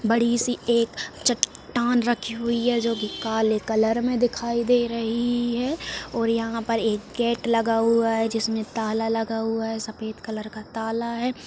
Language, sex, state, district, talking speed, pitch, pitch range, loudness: Hindi, female, Bihar, Purnia, 180 wpm, 230 Hz, 225-235 Hz, -24 LUFS